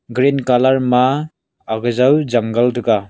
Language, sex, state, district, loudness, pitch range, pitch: Wancho, male, Arunachal Pradesh, Longding, -15 LUFS, 120-135 Hz, 125 Hz